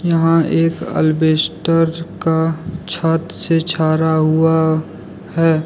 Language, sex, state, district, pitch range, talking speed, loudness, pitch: Hindi, male, Jharkhand, Deoghar, 160-165 Hz, 95 wpm, -16 LUFS, 165 Hz